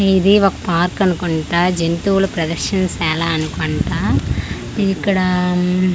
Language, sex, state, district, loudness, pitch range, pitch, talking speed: Telugu, female, Andhra Pradesh, Manyam, -17 LUFS, 170-195 Hz, 180 Hz, 80 wpm